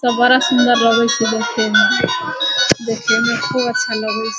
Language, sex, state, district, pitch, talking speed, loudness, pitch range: Hindi, female, Bihar, Sitamarhi, 235 Hz, 150 wpm, -15 LUFS, 225-245 Hz